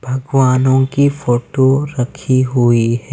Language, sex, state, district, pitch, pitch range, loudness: Hindi, male, Bihar, Patna, 130 Hz, 125-135 Hz, -14 LUFS